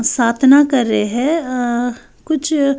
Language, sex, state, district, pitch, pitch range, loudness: Hindi, female, Bihar, West Champaran, 260 Hz, 240-285 Hz, -15 LUFS